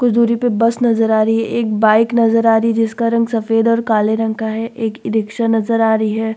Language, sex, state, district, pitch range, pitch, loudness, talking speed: Hindi, female, Uttar Pradesh, Muzaffarnagar, 220-230 Hz, 225 Hz, -15 LUFS, 265 wpm